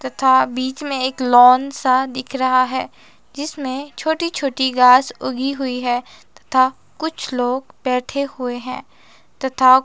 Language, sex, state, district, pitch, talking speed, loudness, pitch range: Hindi, male, Himachal Pradesh, Shimla, 260 Hz, 140 wpm, -18 LUFS, 255-275 Hz